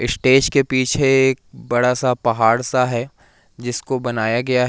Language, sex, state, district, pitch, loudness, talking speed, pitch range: Hindi, male, Madhya Pradesh, Umaria, 125 Hz, -18 LUFS, 155 wpm, 120-130 Hz